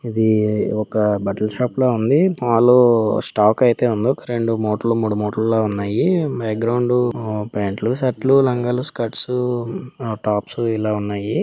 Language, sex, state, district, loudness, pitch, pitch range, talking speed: Telugu, male, Telangana, Karimnagar, -19 LUFS, 115 Hz, 105-125 Hz, 145 wpm